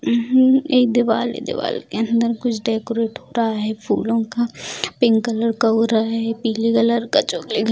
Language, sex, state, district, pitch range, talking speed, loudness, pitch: Hindi, female, Bihar, Bhagalpur, 225-240 Hz, 195 wpm, -19 LUFS, 230 Hz